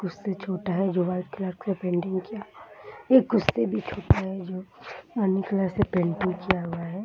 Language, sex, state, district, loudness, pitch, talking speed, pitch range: Hindi, female, Bihar, Muzaffarpur, -26 LUFS, 185 Hz, 205 wpm, 180-195 Hz